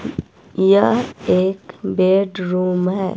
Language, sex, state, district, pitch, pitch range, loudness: Hindi, female, Himachal Pradesh, Shimla, 190 Hz, 185-195 Hz, -17 LUFS